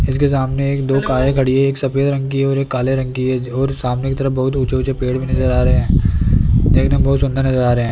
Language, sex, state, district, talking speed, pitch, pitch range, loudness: Hindi, male, Rajasthan, Jaipur, 270 wpm, 135 Hz, 130-135 Hz, -16 LUFS